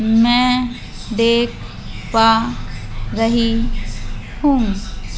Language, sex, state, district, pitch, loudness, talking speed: Hindi, female, Madhya Pradesh, Bhopal, 120 Hz, -17 LUFS, 60 wpm